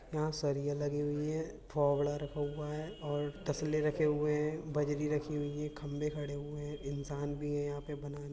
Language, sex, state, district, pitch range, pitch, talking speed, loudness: Hindi, male, Uttar Pradesh, Budaun, 145-150 Hz, 145 Hz, 210 wpm, -36 LUFS